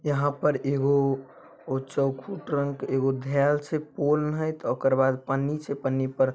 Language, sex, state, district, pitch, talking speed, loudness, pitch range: Maithili, male, Bihar, Samastipur, 140 Hz, 140 wpm, -26 LUFS, 135-145 Hz